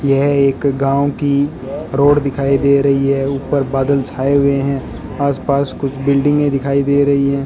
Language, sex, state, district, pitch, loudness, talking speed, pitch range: Hindi, male, Rajasthan, Bikaner, 140 Hz, -15 LUFS, 175 wpm, 135-140 Hz